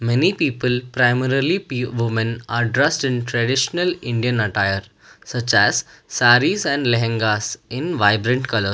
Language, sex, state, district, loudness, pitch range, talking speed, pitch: English, male, Karnataka, Bangalore, -19 LUFS, 115-130 Hz, 130 wpm, 120 Hz